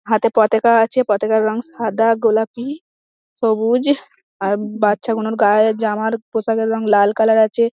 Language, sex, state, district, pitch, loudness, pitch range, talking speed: Bengali, female, West Bengal, Dakshin Dinajpur, 220 Hz, -17 LUFS, 215-230 Hz, 130 wpm